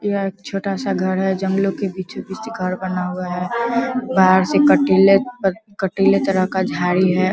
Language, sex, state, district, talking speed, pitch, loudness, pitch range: Hindi, female, Bihar, Vaishali, 170 wpm, 190 Hz, -18 LUFS, 185-195 Hz